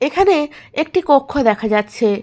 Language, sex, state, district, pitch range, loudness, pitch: Bengali, female, West Bengal, Malda, 220-310 Hz, -16 LUFS, 280 Hz